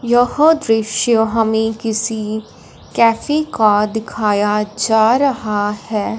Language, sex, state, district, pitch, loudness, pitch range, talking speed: Hindi, female, Punjab, Fazilka, 220 Hz, -16 LUFS, 215-235 Hz, 95 wpm